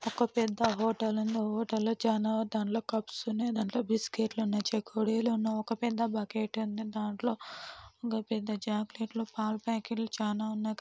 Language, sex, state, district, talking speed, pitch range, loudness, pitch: Telugu, female, Andhra Pradesh, Anantapur, 165 wpm, 215-225 Hz, -33 LUFS, 220 Hz